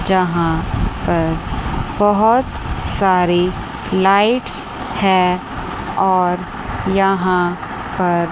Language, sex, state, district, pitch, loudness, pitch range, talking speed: Hindi, female, Chandigarh, Chandigarh, 185 Hz, -17 LUFS, 175-195 Hz, 65 wpm